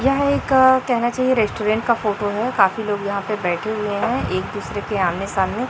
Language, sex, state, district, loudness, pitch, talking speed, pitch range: Hindi, female, Chhattisgarh, Raipur, -20 LUFS, 215 Hz, 210 wpm, 205-250 Hz